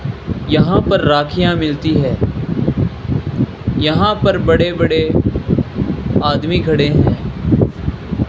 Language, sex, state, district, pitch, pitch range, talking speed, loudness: Hindi, male, Rajasthan, Bikaner, 155 Hz, 145-175 Hz, 85 wpm, -15 LUFS